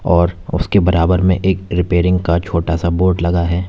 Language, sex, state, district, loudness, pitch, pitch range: Hindi, male, Uttar Pradesh, Lalitpur, -15 LUFS, 90 Hz, 85-90 Hz